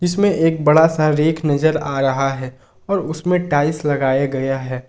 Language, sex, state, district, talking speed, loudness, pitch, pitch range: Hindi, male, Jharkhand, Ranchi, 185 wpm, -17 LUFS, 150 Hz, 135-160 Hz